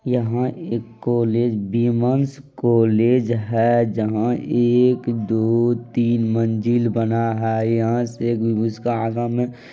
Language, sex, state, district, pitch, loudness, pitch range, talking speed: Maithili, male, Bihar, Madhepura, 115 Hz, -20 LUFS, 115-120 Hz, 100 wpm